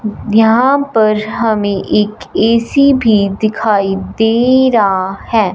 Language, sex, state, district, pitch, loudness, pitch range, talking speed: Hindi, female, Punjab, Fazilka, 220 Hz, -12 LUFS, 205-230 Hz, 110 wpm